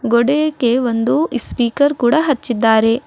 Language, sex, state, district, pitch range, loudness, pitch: Kannada, female, Karnataka, Bidar, 235-285 Hz, -15 LUFS, 245 Hz